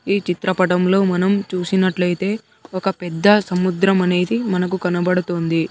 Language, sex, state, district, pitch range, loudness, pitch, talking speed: Telugu, male, Andhra Pradesh, Sri Satya Sai, 180-195 Hz, -18 LUFS, 185 Hz, 105 wpm